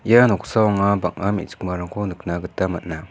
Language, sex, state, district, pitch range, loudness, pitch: Garo, male, Meghalaya, West Garo Hills, 90-105 Hz, -21 LUFS, 95 Hz